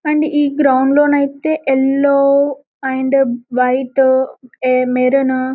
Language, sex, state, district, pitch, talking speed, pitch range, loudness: Telugu, female, Telangana, Karimnagar, 270 Hz, 120 wpm, 260-280 Hz, -14 LUFS